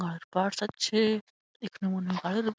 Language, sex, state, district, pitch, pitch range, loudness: Bengali, male, West Bengal, Malda, 200 Hz, 185-215 Hz, -30 LUFS